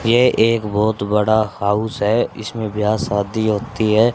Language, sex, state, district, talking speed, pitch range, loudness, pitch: Hindi, male, Haryana, Charkhi Dadri, 160 wpm, 105-110 Hz, -18 LUFS, 110 Hz